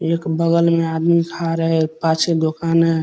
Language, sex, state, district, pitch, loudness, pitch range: Hindi, male, Bihar, Darbhanga, 165 Hz, -18 LUFS, 160-165 Hz